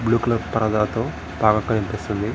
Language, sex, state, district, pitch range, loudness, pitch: Telugu, male, Andhra Pradesh, Srikakulam, 105-115 Hz, -22 LUFS, 110 Hz